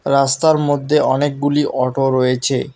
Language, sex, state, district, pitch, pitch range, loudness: Bengali, male, West Bengal, Alipurduar, 140 Hz, 130-145 Hz, -16 LUFS